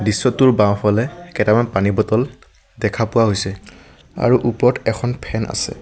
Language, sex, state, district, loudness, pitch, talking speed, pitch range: Assamese, male, Assam, Sonitpur, -18 LUFS, 110 Hz, 135 wpm, 105-120 Hz